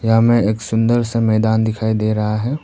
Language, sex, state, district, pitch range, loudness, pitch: Hindi, male, Arunachal Pradesh, Papum Pare, 110-115 Hz, -16 LUFS, 110 Hz